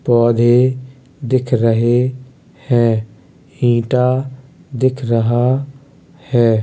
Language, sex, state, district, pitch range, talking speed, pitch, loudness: Hindi, male, Uttar Pradesh, Hamirpur, 120-130 Hz, 70 wpm, 125 Hz, -15 LUFS